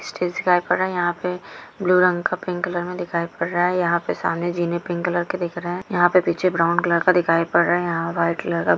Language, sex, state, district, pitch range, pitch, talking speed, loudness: Hindi, female, Maharashtra, Chandrapur, 170-180 Hz, 175 Hz, 245 wpm, -21 LUFS